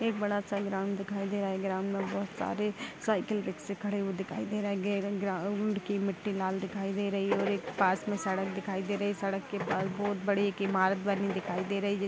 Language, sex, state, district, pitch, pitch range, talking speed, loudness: Hindi, female, Bihar, Vaishali, 200 Hz, 195-205 Hz, 255 wpm, -32 LUFS